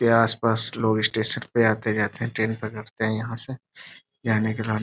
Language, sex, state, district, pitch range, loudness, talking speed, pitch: Hindi, male, Bihar, Sitamarhi, 110-115 Hz, -22 LUFS, 175 wpm, 110 Hz